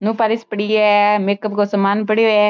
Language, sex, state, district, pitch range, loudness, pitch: Marwari, female, Rajasthan, Churu, 205-215 Hz, -16 LUFS, 210 Hz